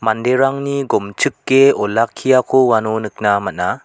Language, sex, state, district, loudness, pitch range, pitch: Garo, male, Meghalaya, West Garo Hills, -15 LUFS, 105-135 Hz, 120 Hz